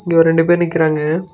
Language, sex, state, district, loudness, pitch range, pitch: Tamil, male, Karnataka, Bangalore, -14 LUFS, 160-175 Hz, 165 Hz